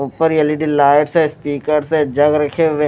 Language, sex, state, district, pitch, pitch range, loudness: Hindi, male, Haryana, Rohtak, 150 Hz, 145-155 Hz, -15 LUFS